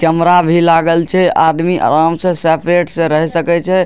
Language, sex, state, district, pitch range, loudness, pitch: Maithili, male, Bihar, Darbhanga, 165-175 Hz, -12 LUFS, 170 Hz